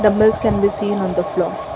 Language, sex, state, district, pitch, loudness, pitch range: English, female, Karnataka, Bangalore, 205 Hz, -18 LUFS, 185-210 Hz